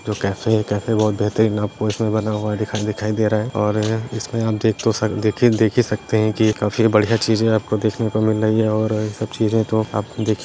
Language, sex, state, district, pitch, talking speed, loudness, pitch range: Kumaoni, male, Uttarakhand, Uttarkashi, 110 Hz, 250 wpm, -19 LUFS, 105-110 Hz